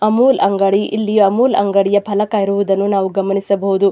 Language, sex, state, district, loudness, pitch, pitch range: Kannada, female, Karnataka, Dakshina Kannada, -15 LUFS, 200 Hz, 195-210 Hz